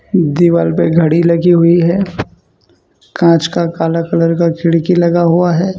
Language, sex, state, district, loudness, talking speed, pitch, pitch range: Hindi, male, Gujarat, Valsad, -12 LUFS, 155 wpm, 170 Hz, 165-175 Hz